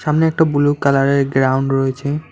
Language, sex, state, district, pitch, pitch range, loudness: Bengali, male, West Bengal, Alipurduar, 140 Hz, 135-150 Hz, -16 LUFS